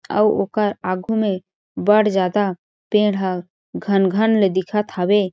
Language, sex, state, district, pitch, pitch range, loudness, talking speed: Chhattisgarhi, female, Chhattisgarh, Jashpur, 200 Hz, 185-210 Hz, -19 LUFS, 135 wpm